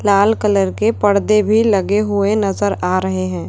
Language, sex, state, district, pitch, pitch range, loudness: Hindi, male, Chhattisgarh, Raipur, 205 Hz, 195-210 Hz, -15 LUFS